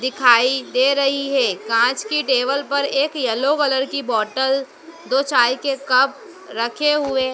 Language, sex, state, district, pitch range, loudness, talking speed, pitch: Hindi, female, Madhya Pradesh, Dhar, 255-280 Hz, -18 LUFS, 155 wpm, 270 Hz